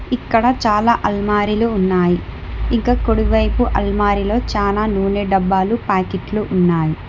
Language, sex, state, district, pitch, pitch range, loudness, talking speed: Telugu, female, Telangana, Hyderabad, 210 Hz, 195-230 Hz, -17 LUFS, 100 wpm